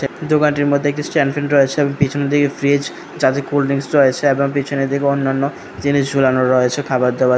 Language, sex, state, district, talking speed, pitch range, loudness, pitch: Bengali, male, Tripura, West Tripura, 180 wpm, 135-145 Hz, -16 LUFS, 140 Hz